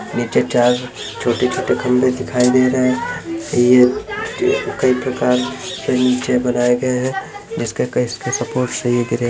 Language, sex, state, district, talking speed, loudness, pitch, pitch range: Hindi, male, Chhattisgarh, Bilaspur, 140 wpm, -17 LUFS, 125 Hz, 125-130 Hz